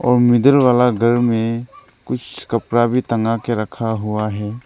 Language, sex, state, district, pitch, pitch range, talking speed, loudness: Hindi, male, Arunachal Pradesh, Lower Dibang Valley, 115 Hz, 110-120 Hz, 165 wpm, -17 LUFS